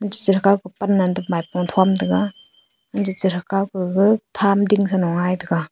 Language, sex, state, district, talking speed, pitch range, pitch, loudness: Wancho, female, Arunachal Pradesh, Longding, 155 wpm, 180-200 Hz, 190 Hz, -19 LUFS